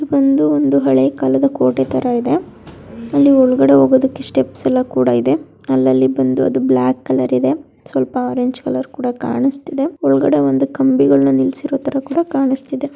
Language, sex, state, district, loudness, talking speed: Kannada, female, Karnataka, Belgaum, -15 LUFS, 155 wpm